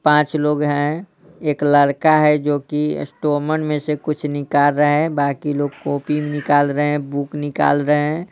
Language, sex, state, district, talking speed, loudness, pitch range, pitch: Hindi, male, Bihar, Patna, 175 wpm, -18 LUFS, 145-150 Hz, 150 Hz